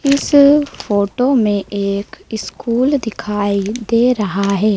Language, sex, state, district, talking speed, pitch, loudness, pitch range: Hindi, female, Madhya Pradesh, Dhar, 115 wpm, 220 Hz, -16 LUFS, 200-255 Hz